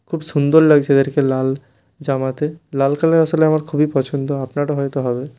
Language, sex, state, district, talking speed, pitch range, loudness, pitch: Bengali, male, West Bengal, Malda, 180 wpm, 135-155 Hz, -17 LUFS, 140 Hz